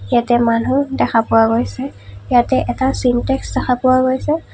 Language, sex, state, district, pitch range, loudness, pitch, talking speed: Assamese, female, Assam, Kamrup Metropolitan, 230-265 Hz, -16 LUFS, 245 Hz, 145 wpm